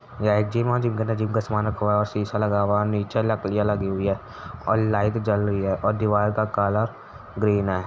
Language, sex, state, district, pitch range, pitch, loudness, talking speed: Hindi, male, Uttar Pradesh, Etah, 100-110 Hz, 105 Hz, -23 LUFS, 260 wpm